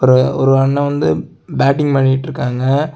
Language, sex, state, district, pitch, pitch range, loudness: Tamil, male, Tamil Nadu, Kanyakumari, 135 Hz, 130-145 Hz, -15 LUFS